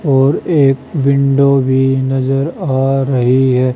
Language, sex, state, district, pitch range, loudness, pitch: Hindi, male, Haryana, Jhajjar, 130-140 Hz, -13 LUFS, 135 Hz